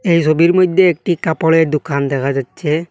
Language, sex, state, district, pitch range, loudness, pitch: Bengali, male, Assam, Hailakandi, 150-175 Hz, -14 LUFS, 160 Hz